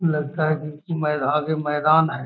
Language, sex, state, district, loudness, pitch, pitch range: Magahi, male, Bihar, Gaya, -22 LUFS, 150 Hz, 150-155 Hz